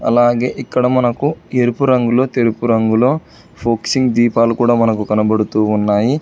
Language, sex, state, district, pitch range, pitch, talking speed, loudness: Telugu, male, Telangana, Hyderabad, 110-125 Hz, 120 Hz, 125 wpm, -15 LUFS